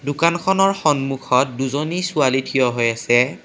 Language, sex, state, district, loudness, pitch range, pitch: Assamese, male, Assam, Kamrup Metropolitan, -18 LUFS, 130-165 Hz, 135 Hz